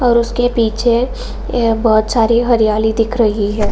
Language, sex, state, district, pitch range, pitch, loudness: Hindi, female, Bihar, Saran, 220-240 Hz, 230 Hz, -14 LUFS